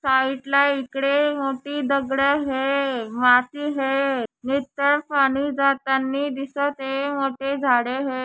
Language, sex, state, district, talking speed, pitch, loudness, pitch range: Marathi, female, Maharashtra, Chandrapur, 110 wpm, 275 Hz, -22 LUFS, 265-280 Hz